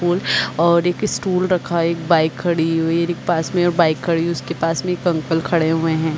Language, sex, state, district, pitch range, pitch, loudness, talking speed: Hindi, female, Chhattisgarh, Bilaspur, 165-175 Hz, 170 Hz, -18 LUFS, 215 wpm